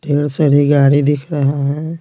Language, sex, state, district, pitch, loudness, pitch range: Hindi, male, Bihar, Patna, 145 Hz, -14 LUFS, 145-150 Hz